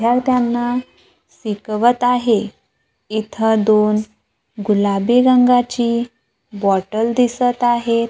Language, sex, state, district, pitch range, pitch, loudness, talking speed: Marathi, female, Maharashtra, Gondia, 215-245 Hz, 230 Hz, -17 LUFS, 75 wpm